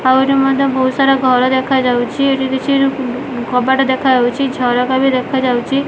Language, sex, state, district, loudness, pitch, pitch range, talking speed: Odia, female, Odisha, Malkangiri, -14 LUFS, 260 Hz, 255-270 Hz, 155 wpm